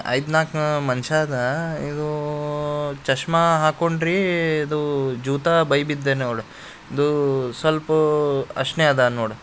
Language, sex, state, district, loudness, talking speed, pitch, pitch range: Kannada, male, Karnataka, Gulbarga, -21 LUFS, 90 wpm, 150 Hz, 135-155 Hz